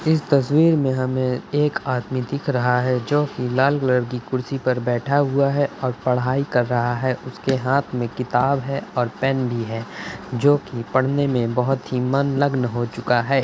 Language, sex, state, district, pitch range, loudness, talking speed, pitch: Hindi, male, Uttar Pradesh, Budaun, 125-140 Hz, -21 LUFS, 185 wpm, 130 Hz